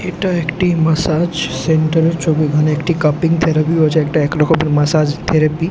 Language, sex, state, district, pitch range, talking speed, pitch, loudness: Bengali, male, West Bengal, Jhargram, 155-165 Hz, 190 wpm, 160 Hz, -15 LUFS